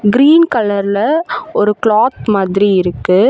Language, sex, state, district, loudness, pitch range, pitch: Tamil, female, Tamil Nadu, Chennai, -12 LUFS, 200-240 Hz, 210 Hz